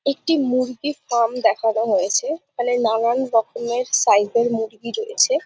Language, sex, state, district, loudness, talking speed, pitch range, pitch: Bengali, female, West Bengal, Jhargram, -20 LUFS, 145 wpm, 230-285 Hz, 245 Hz